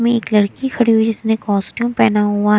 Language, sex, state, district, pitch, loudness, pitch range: Hindi, female, Punjab, Kapurthala, 220 Hz, -16 LUFS, 210-235 Hz